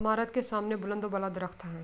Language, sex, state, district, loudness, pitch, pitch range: Urdu, female, Andhra Pradesh, Anantapur, -33 LUFS, 210 Hz, 185-220 Hz